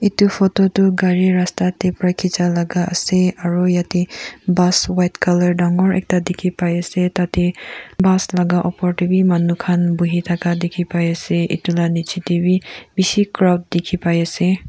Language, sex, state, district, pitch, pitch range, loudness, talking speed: Nagamese, female, Nagaland, Kohima, 180 Hz, 175-185 Hz, -17 LUFS, 165 wpm